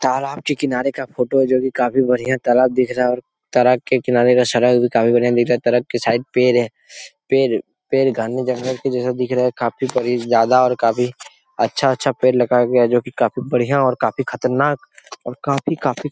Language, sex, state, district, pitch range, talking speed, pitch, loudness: Hindi, male, Jharkhand, Jamtara, 125-130 Hz, 230 wpm, 125 Hz, -17 LUFS